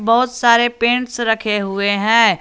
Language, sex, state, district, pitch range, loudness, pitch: Hindi, male, Jharkhand, Garhwa, 210-240 Hz, -15 LUFS, 230 Hz